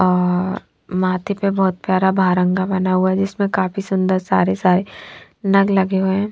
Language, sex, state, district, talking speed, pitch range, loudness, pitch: Hindi, female, Punjab, Fazilka, 170 wpm, 185-195 Hz, -18 LUFS, 190 Hz